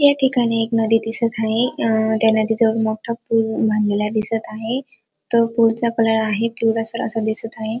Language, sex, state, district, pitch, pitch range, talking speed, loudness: Marathi, female, Maharashtra, Dhule, 225 Hz, 220-230 Hz, 175 wpm, -19 LUFS